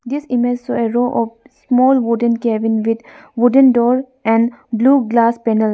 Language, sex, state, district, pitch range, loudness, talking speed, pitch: English, female, Arunachal Pradesh, Lower Dibang Valley, 230-255 Hz, -15 LUFS, 165 wpm, 240 Hz